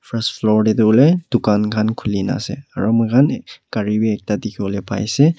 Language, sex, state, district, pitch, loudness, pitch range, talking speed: Nagamese, male, Nagaland, Kohima, 110 Hz, -17 LUFS, 105-120 Hz, 210 wpm